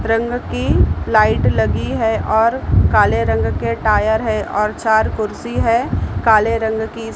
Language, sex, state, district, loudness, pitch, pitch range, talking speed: Hindi, female, Maharashtra, Mumbai Suburban, -16 LUFS, 220 Hz, 220-225 Hz, 150 wpm